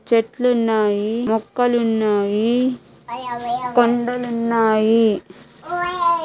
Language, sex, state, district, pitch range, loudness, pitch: Telugu, female, Andhra Pradesh, Anantapur, 225-245 Hz, -19 LUFS, 235 Hz